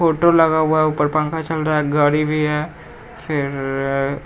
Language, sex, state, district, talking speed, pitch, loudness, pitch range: Hindi, female, Bihar, Patna, 195 wpm, 150 Hz, -18 LUFS, 145-160 Hz